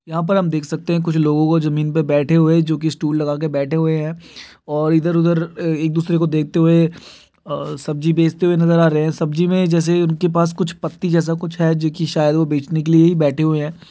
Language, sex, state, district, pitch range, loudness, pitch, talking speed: Hindi, male, Uttar Pradesh, Gorakhpur, 155-170 Hz, -17 LUFS, 160 Hz, 245 wpm